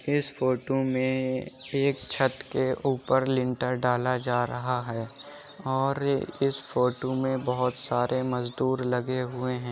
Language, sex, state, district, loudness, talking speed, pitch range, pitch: Hindi, male, Uttar Pradesh, Muzaffarnagar, -28 LUFS, 135 wpm, 125-135 Hz, 130 Hz